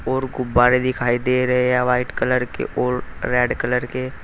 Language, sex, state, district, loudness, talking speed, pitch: Hindi, male, Uttar Pradesh, Saharanpur, -20 LUFS, 185 wpm, 125 Hz